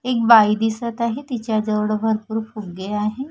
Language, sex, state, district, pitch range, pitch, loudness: Marathi, female, Maharashtra, Washim, 215-235 Hz, 220 Hz, -19 LUFS